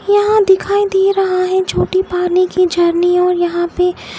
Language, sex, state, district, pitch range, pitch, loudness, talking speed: Hindi, female, Odisha, Khordha, 360-385 Hz, 365 Hz, -14 LUFS, 185 wpm